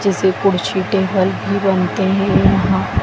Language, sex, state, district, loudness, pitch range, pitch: Hindi, female, Madhya Pradesh, Dhar, -16 LUFS, 180-195 Hz, 190 Hz